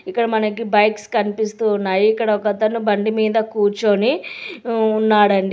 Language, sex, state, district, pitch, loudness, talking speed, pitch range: Telugu, female, Telangana, Hyderabad, 215 Hz, -18 LUFS, 140 wpm, 210-225 Hz